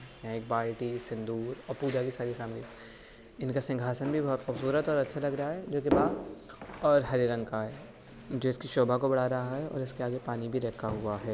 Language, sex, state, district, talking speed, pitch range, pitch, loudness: Hindi, male, Uttar Pradesh, Budaun, 210 wpm, 115-135 Hz, 125 Hz, -32 LUFS